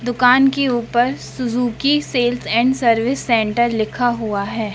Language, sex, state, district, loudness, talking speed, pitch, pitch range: Hindi, female, Madhya Pradesh, Dhar, -17 LUFS, 140 wpm, 240 Hz, 230-250 Hz